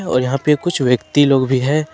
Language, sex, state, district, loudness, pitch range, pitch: Hindi, male, Jharkhand, Ranchi, -16 LUFS, 130-150 Hz, 135 Hz